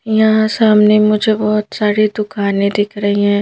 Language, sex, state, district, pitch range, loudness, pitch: Hindi, female, Madhya Pradesh, Bhopal, 205-215 Hz, -13 LUFS, 210 Hz